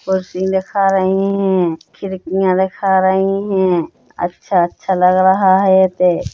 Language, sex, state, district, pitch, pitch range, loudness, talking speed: Hindi, female, Chhattisgarh, Bilaspur, 190 Hz, 180-190 Hz, -15 LUFS, 125 wpm